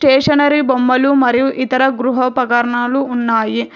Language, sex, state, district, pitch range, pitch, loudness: Telugu, female, Telangana, Hyderabad, 245-270 Hz, 255 Hz, -14 LUFS